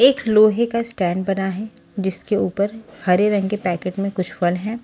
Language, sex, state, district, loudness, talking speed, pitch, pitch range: Hindi, female, Maharashtra, Washim, -20 LUFS, 200 wpm, 200 Hz, 185-220 Hz